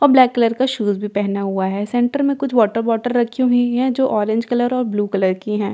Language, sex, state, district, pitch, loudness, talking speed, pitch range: Hindi, female, Bihar, Katihar, 235 Hz, -18 LUFS, 260 wpm, 205-250 Hz